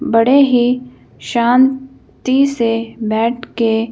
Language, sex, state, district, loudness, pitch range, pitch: Hindi, female, Madhya Pradesh, Bhopal, -15 LUFS, 230-265 Hz, 240 Hz